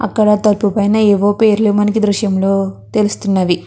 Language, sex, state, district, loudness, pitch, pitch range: Telugu, female, Andhra Pradesh, Krishna, -14 LUFS, 205 Hz, 200-215 Hz